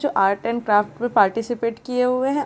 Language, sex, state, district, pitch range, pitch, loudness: Hindi, female, Chhattisgarh, Bilaspur, 210-250 Hz, 235 Hz, -21 LUFS